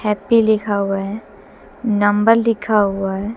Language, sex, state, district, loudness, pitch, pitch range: Hindi, female, Haryana, Jhajjar, -17 LUFS, 210 Hz, 200-225 Hz